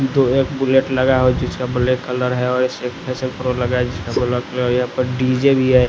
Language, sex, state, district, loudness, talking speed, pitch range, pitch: Hindi, male, Odisha, Nuapada, -18 LUFS, 205 wpm, 125-130 Hz, 125 Hz